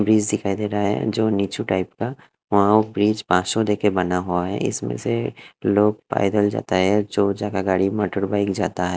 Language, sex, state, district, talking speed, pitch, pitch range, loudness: Hindi, male, Haryana, Rohtak, 185 wpm, 100 Hz, 95-105 Hz, -21 LUFS